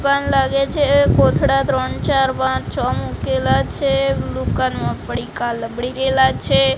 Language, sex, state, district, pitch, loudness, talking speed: Gujarati, female, Gujarat, Gandhinagar, 235 Hz, -18 LUFS, 135 wpm